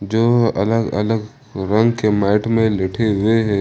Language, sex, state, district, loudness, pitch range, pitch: Hindi, male, Jharkhand, Ranchi, -17 LUFS, 100-115 Hz, 110 Hz